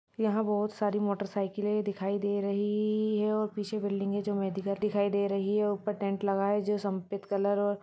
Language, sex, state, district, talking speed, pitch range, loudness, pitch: Hindi, female, Maharashtra, Chandrapur, 190 wpm, 200-210 Hz, -31 LUFS, 205 Hz